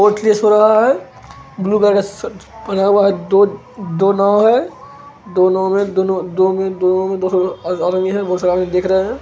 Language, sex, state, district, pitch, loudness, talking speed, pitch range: Hindi, male, Bihar, Begusarai, 195 Hz, -15 LUFS, 180 wpm, 185-205 Hz